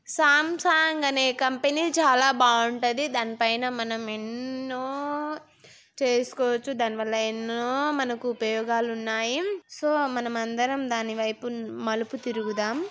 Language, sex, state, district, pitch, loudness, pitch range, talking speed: Telugu, female, Telangana, Karimnagar, 245 Hz, -25 LUFS, 230-285 Hz, 100 wpm